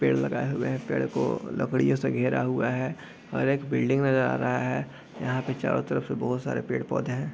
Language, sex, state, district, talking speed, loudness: Hindi, male, Bihar, Sitamarhi, 220 wpm, -27 LUFS